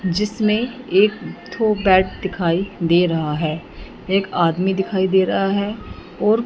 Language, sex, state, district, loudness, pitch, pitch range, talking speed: Hindi, female, Punjab, Fazilka, -19 LUFS, 190 Hz, 180-210 Hz, 140 wpm